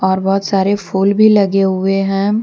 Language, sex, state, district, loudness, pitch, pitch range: Hindi, female, Jharkhand, Deoghar, -14 LUFS, 195 Hz, 195-200 Hz